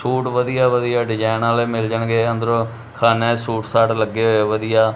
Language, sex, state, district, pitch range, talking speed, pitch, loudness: Punjabi, male, Punjab, Kapurthala, 110-120 Hz, 180 wpm, 115 Hz, -18 LUFS